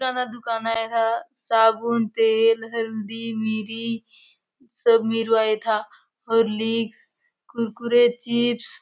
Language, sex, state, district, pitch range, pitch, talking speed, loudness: Halbi, female, Chhattisgarh, Bastar, 225-235 Hz, 230 Hz, 100 wpm, -22 LUFS